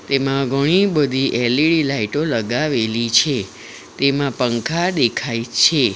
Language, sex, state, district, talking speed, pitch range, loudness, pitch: Gujarati, female, Gujarat, Valsad, 110 wpm, 120-150 Hz, -18 LUFS, 135 Hz